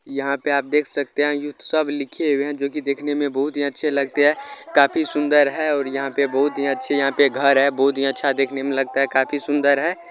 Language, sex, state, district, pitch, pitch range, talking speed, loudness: Hindi, male, Bihar, Jamui, 140 Hz, 140-145 Hz, 250 wpm, -20 LUFS